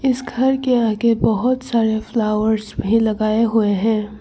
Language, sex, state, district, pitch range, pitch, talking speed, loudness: Hindi, female, Arunachal Pradesh, Longding, 215-240 Hz, 225 Hz, 155 wpm, -18 LUFS